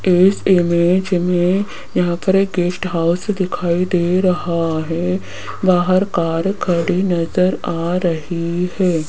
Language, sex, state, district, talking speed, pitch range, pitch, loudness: Hindi, female, Rajasthan, Jaipur, 125 wpm, 170-185 Hz, 180 Hz, -17 LUFS